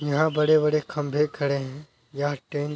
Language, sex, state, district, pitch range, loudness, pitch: Hindi, male, Bihar, Araria, 140-150 Hz, -24 LUFS, 145 Hz